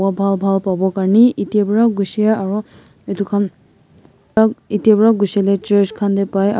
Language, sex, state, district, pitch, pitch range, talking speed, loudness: Nagamese, male, Nagaland, Kohima, 200 Hz, 195-215 Hz, 165 wpm, -16 LUFS